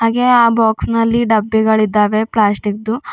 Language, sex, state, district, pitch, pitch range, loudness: Kannada, female, Karnataka, Bidar, 220 Hz, 215-230 Hz, -14 LUFS